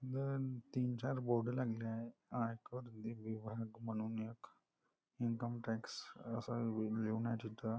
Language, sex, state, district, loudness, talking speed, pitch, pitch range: Marathi, male, Maharashtra, Nagpur, -43 LUFS, 130 wpm, 115 Hz, 110-120 Hz